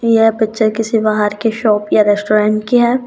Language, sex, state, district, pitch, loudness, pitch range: Hindi, female, Rajasthan, Churu, 220 Hz, -14 LUFS, 215-225 Hz